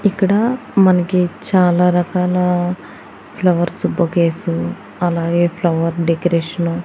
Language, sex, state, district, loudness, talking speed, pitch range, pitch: Telugu, female, Andhra Pradesh, Annamaya, -16 LUFS, 85 wpm, 170-180 Hz, 175 Hz